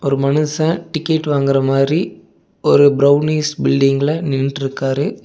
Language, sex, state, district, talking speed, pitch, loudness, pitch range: Tamil, male, Tamil Nadu, Nilgiris, 105 wpm, 145 Hz, -16 LUFS, 135-155 Hz